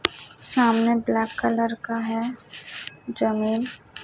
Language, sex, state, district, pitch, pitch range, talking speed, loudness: Hindi, male, Chhattisgarh, Raipur, 230 Hz, 225-235 Hz, 90 wpm, -24 LUFS